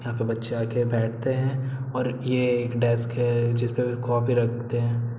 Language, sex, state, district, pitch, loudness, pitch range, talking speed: Hindi, male, Bihar, Araria, 120 Hz, -25 LUFS, 120-125 Hz, 175 wpm